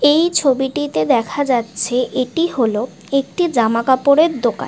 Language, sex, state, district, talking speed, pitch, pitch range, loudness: Bengali, female, West Bengal, Jhargram, 130 wpm, 260 Hz, 235-290 Hz, -17 LUFS